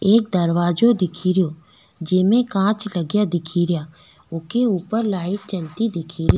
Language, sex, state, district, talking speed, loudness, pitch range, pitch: Rajasthani, female, Rajasthan, Nagaur, 115 wpm, -20 LUFS, 170-210 Hz, 185 Hz